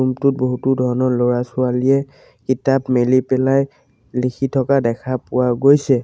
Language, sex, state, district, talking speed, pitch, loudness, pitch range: Assamese, male, Assam, Sonitpur, 130 wpm, 130 Hz, -18 LUFS, 125-135 Hz